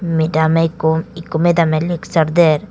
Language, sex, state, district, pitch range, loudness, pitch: Chakma, female, Tripura, Dhalai, 160-170 Hz, -16 LUFS, 165 Hz